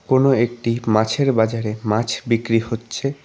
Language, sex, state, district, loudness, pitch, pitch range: Bengali, male, West Bengal, Cooch Behar, -19 LUFS, 115 Hz, 115-130 Hz